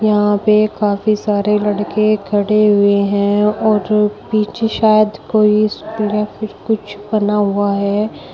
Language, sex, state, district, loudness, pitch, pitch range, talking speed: Hindi, female, Uttar Pradesh, Shamli, -15 LUFS, 210 Hz, 205-215 Hz, 145 wpm